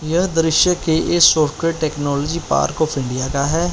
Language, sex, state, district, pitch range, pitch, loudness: Hindi, male, Punjab, Fazilka, 145-165 Hz, 160 Hz, -17 LUFS